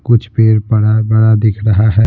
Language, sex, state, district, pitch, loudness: Hindi, male, Bihar, Patna, 110 Hz, -11 LUFS